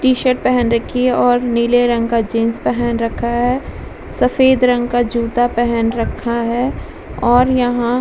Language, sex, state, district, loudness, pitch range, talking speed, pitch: Hindi, female, Bihar, Vaishali, -15 LUFS, 235-250 Hz, 165 wpm, 240 Hz